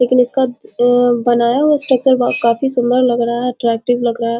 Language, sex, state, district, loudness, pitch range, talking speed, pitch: Hindi, female, Bihar, Muzaffarpur, -14 LUFS, 235-255 Hz, 215 wpm, 245 Hz